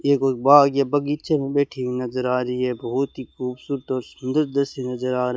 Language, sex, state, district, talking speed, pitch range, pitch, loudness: Hindi, male, Rajasthan, Bikaner, 235 wpm, 125-140 Hz, 130 Hz, -22 LUFS